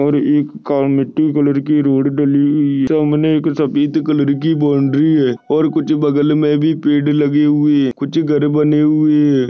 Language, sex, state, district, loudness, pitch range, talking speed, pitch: Hindi, male, Maharashtra, Dhule, -14 LUFS, 140-150 Hz, 185 wpm, 150 Hz